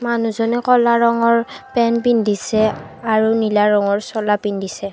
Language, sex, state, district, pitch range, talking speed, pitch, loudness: Assamese, female, Assam, Kamrup Metropolitan, 210-235 Hz, 120 wpm, 225 Hz, -17 LUFS